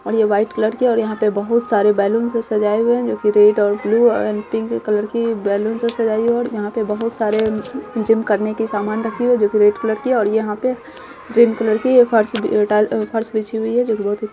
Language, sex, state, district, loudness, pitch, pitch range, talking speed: Hindi, female, Bihar, Saharsa, -17 LUFS, 220 Hz, 210-230 Hz, 255 wpm